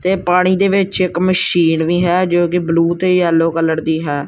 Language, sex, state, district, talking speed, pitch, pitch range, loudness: Punjabi, male, Punjab, Kapurthala, 225 wpm, 175 Hz, 165-180 Hz, -14 LUFS